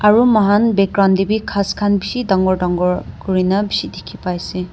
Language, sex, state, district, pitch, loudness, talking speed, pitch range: Nagamese, female, Nagaland, Dimapur, 195 Hz, -16 LUFS, 190 wpm, 185-210 Hz